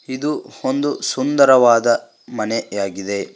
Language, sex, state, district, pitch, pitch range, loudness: Kannada, male, Karnataka, Koppal, 130 Hz, 100-140 Hz, -18 LUFS